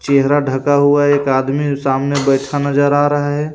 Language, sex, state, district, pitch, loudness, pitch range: Hindi, male, Jharkhand, Ranchi, 140 Hz, -14 LUFS, 135-145 Hz